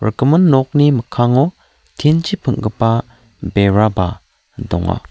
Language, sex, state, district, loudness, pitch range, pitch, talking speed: Garo, male, Meghalaya, South Garo Hills, -15 LUFS, 110-145 Hz, 120 Hz, 95 wpm